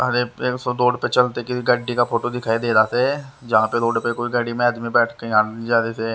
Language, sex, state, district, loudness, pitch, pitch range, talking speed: Hindi, male, Haryana, Rohtak, -20 LUFS, 120 Hz, 115-125 Hz, 255 wpm